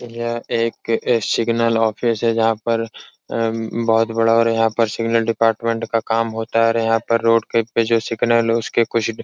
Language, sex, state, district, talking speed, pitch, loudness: Hindi, male, Uttar Pradesh, Etah, 190 wpm, 115 Hz, -19 LUFS